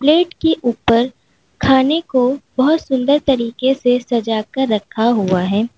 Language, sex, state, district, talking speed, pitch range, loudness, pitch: Hindi, female, Uttar Pradesh, Lalitpur, 145 wpm, 230-275 Hz, -16 LUFS, 255 Hz